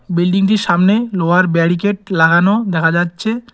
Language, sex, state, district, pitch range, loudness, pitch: Bengali, male, West Bengal, Cooch Behar, 175-205 Hz, -14 LUFS, 185 Hz